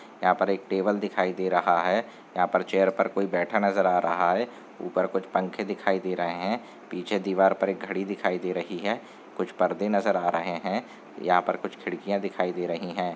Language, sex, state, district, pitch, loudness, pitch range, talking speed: Hindi, male, Chhattisgarh, Sarguja, 95 Hz, -27 LUFS, 90-100 Hz, 220 wpm